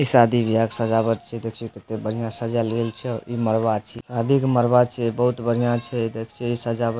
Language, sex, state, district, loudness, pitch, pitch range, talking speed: Maithili, male, Bihar, Supaul, -22 LUFS, 115 Hz, 115-120 Hz, 220 wpm